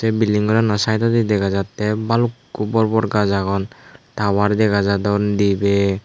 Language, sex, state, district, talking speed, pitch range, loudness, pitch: Chakma, male, Tripura, Unakoti, 140 wpm, 100-110 Hz, -18 LUFS, 105 Hz